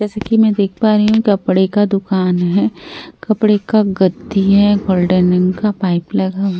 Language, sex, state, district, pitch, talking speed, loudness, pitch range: Hindi, female, Bihar, Katihar, 195 Hz, 190 wpm, -14 LUFS, 185-210 Hz